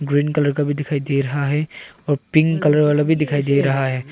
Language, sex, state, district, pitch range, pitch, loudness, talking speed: Hindi, male, Arunachal Pradesh, Longding, 140-150 Hz, 145 Hz, -18 LUFS, 245 wpm